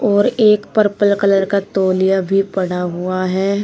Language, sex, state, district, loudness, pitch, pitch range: Hindi, female, Uttar Pradesh, Shamli, -16 LUFS, 195 Hz, 185-205 Hz